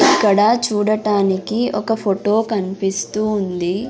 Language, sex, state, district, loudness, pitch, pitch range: Telugu, female, Andhra Pradesh, Sri Satya Sai, -18 LUFS, 210 Hz, 195-220 Hz